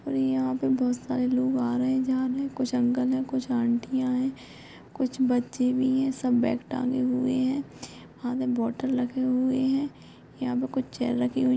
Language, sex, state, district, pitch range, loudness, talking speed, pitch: Hindi, female, Chhattisgarh, Korba, 245-260 Hz, -27 LUFS, 200 wpm, 255 Hz